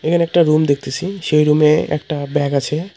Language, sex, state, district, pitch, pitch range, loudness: Bengali, male, West Bengal, Cooch Behar, 150 Hz, 145-165 Hz, -16 LUFS